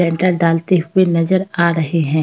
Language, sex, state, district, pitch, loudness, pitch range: Hindi, female, Uttar Pradesh, Hamirpur, 170 Hz, -15 LUFS, 165-185 Hz